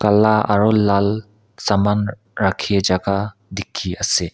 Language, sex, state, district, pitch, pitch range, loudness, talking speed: Nagamese, male, Nagaland, Kohima, 105 Hz, 100-105 Hz, -18 LUFS, 110 wpm